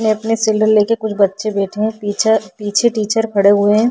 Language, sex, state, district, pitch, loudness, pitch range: Hindi, female, Maharashtra, Chandrapur, 215 Hz, -15 LUFS, 205-220 Hz